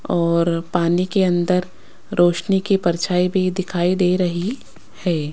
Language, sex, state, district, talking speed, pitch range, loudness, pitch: Hindi, female, Rajasthan, Jaipur, 135 wpm, 170-185 Hz, -19 LUFS, 180 Hz